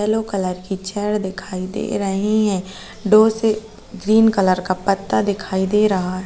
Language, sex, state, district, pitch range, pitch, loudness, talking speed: Hindi, female, Uttar Pradesh, Jalaun, 190-215 Hz, 200 Hz, -19 LUFS, 175 wpm